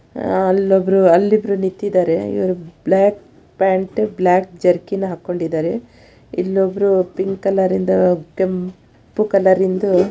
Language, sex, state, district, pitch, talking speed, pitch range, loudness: Kannada, female, Karnataka, Shimoga, 190 Hz, 125 wpm, 180-195 Hz, -17 LUFS